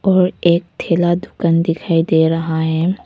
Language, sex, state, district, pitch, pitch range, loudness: Hindi, female, Arunachal Pradesh, Papum Pare, 170 Hz, 165-175 Hz, -16 LUFS